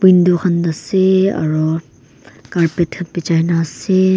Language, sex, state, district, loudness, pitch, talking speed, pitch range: Nagamese, female, Nagaland, Kohima, -16 LUFS, 170 Hz, 115 wpm, 155-185 Hz